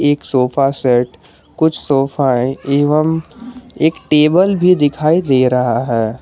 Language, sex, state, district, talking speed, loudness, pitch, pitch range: Hindi, male, Jharkhand, Garhwa, 135 wpm, -14 LUFS, 145 Hz, 130-160 Hz